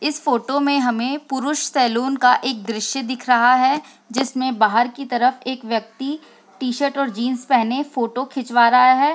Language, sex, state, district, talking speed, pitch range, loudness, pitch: Hindi, female, Bihar, Sitamarhi, 175 wpm, 240-275 Hz, -19 LUFS, 255 Hz